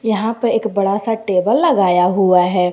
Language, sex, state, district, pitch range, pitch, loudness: Hindi, female, Jharkhand, Garhwa, 180-220 Hz, 200 Hz, -15 LUFS